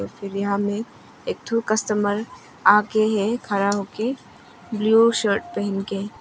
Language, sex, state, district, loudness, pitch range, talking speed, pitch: Hindi, female, Arunachal Pradesh, Longding, -22 LUFS, 200-225 Hz, 155 wpm, 210 Hz